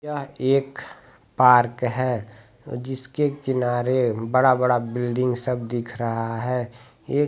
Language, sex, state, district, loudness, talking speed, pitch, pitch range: Hindi, male, Bihar, Begusarai, -23 LUFS, 115 wpm, 125 Hz, 120-130 Hz